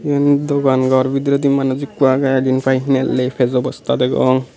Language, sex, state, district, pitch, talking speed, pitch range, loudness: Chakma, male, Tripura, Unakoti, 135 Hz, 170 wpm, 130-140 Hz, -16 LUFS